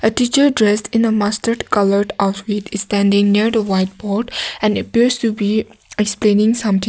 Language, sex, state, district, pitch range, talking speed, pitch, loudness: English, female, Nagaland, Kohima, 205-225 Hz, 155 wpm, 210 Hz, -16 LUFS